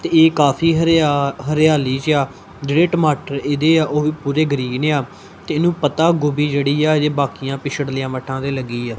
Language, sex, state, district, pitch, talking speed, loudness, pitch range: Punjabi, male, Punjab, Kapurthala, 145 Hz, 185 wpm, -17 LUFS, 140-155 Hz